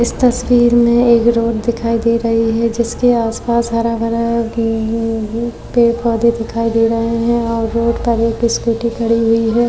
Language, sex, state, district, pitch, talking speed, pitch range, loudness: Hindi, female, Uttar Pradesh, Jyotiba Phule Nagar, 230 Hz, 160 wpm, 230-235 Hz, -15 LUFS